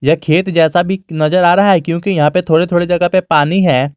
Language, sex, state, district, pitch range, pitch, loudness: Hindi, male, Jharkhand, Garhwa, 160-180 Hz, 175 Hz, -12 LUFS